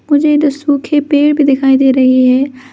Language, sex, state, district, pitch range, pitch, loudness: Hindi, female, Arunachal Pradesh, Lower Dibang Valley, 265-295 Hz, 280 Hz, -11 LUFS